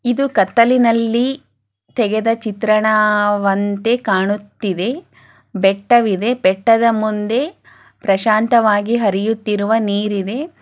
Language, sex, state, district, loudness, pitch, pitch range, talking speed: Kannada, female, Karnataka, Chamarajanagar, -16 LUFS, 215 Hz, 205-235 Hz, 60 wpm